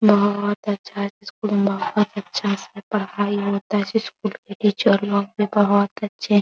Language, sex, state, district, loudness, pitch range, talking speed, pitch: Hindi, female, Bihar, Araria, -22 LUFS, 200-210 Hz, 180 wpm, 205 Hz